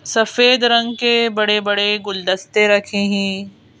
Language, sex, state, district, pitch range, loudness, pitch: Hindi, female, Madhya Pradesh, Bhopal, 200-230 Hz, -16 LUFS, 205 Hz